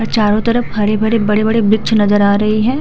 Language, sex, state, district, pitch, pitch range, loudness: Hindi, female, Uttar Pradesh, Hamirpur, 215 Hz, 210-225 Hz, -13 LUFS